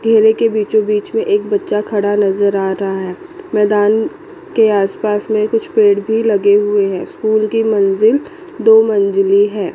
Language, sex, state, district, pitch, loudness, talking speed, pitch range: Hindi, female, Chandigarh, Chandigarh, 210 Hz, -14 LUFS, 180 wpm, 205-225 Hz